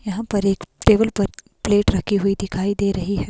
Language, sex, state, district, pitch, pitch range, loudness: Hindi, female, Himachal Pradesh, Shimla, 200 Hz, 195-205 Hz, -20 LUFS